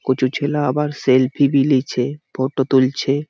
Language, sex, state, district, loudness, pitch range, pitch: Bengali, male, West Bengal, Malda, -18 LUFS, 130-145 Hz, 135 Hz